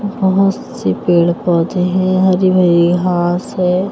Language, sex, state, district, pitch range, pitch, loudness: Hindi, female, Himachal Pradesh, Shimla, 175-185 Hz, 180 Hz, -14 LUFS